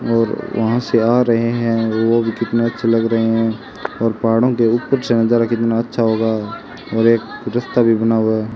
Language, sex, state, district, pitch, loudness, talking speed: Hindi, male, Rajasthan, Bikaner, 115 Hz, -16 LUFS, 205 wpm